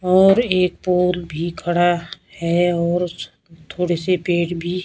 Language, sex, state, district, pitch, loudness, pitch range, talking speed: Hindi, female, Himachal Pradesh, Shimla, 175 Hz, -19 LUFS, 170-180 Hz, 150 wpm